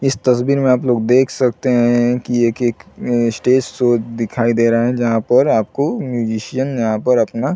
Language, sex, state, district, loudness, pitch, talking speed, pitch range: Hindi, male, Chhattisgarh, Bilaspur, -16 LUFS, 120 Hz, 205 wpm, 115-125 Hz